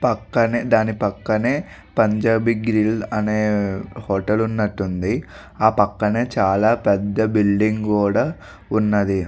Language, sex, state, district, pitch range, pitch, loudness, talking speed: Telugu, male, Andhra Pradesh, Visakhapatnam, 100-110 Hz, 105 Hz, -20 LUFS, 105 wpm